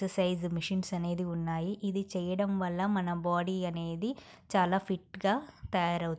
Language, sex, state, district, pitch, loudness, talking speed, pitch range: Telugu, female, Andhra Pradesh, Srikakulam, 185 Hz, -33 LUFS, 145 wpm, 175-195 Hz